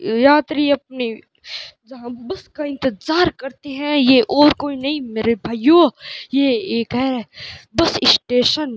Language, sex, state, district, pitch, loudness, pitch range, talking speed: Hindi, male, Rajasthan, Bikaner, 270 Hz, -17 LUFS, 240-290 Hz, 135 wpm